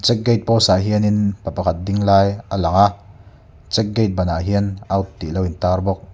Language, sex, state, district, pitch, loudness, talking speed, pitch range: Mizo, male, Mizoram, Aizawl, 100 Hz, -18 LUFS, 225 wpm, 90-105 Hz